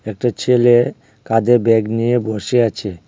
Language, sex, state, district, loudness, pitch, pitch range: Bengali, male, Tripura, West Tripura, -16 LUFS, 115 Hz, 110-120 Hz